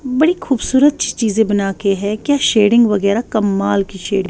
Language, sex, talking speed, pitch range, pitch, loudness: Urdu, female, 165 wpm, 200-255 Hz, 215 Hz, -15 LUFS